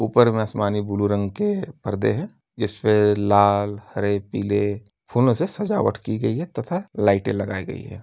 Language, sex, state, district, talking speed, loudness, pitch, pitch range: Hindi, male, Uttar Pradesh, Jyotiba Phule Nagar, 170 wpm, -22 LUFS, 105 Hz, 100-125 Hz